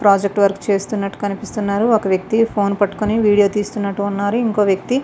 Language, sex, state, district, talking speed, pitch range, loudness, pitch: Telugu, female, Andhra Pradesh, Visakhapatnam, 155 wpm, 200-215 Hz, -17 LUFS, 205 Hz